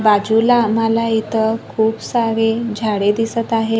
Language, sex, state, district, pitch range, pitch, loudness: Marathi, female, Maharashtra, Gondia, 220-230 Hz, 225 Hz, -17 LUFS